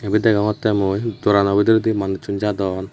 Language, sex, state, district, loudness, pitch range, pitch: Chakma, male, Tripura, West Tripura, -18 LUFS, 100-105 Hz, 105 Hz